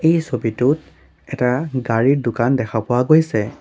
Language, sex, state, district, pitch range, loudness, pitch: Assamese, male, Assam, Sonitpur, 115-140 Hz, -18 LUFS, 125 Hz